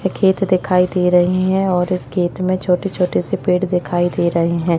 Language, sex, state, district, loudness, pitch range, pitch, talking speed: Hindi, female, Maharashtra, Chandrapur, -17 LUFS, 175-185 Hz, 180 Hz, 210 wpm